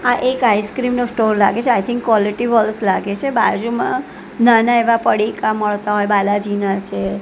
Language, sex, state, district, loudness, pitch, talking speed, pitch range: Gujarati, female, Gujarat, Gandhinagar, -16 LUFS, 215 Hz, 175 wpm, 205-240 Hz